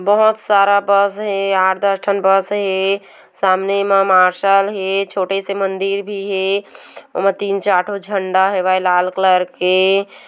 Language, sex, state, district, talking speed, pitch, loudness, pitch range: Hindi, female, Chhattisgarh, Korba, 165 wpm, 195 Hz, -16 LUFS, 190-200 Hz